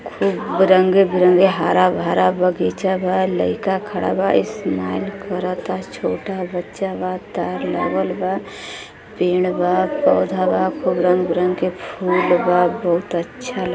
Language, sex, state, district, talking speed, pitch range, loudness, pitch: Bhojpuri, female, Uttar Pradesh, Gorakhpur, 145 wpm, 180-190 Hz, -19 LUFS, 180 Hz